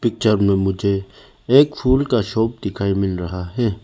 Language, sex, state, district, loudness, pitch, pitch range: Hindi, male, Arunachal Pradesh, Lower Dibang Valley, -19 LUFS, 105 Hz, 95-120 Hz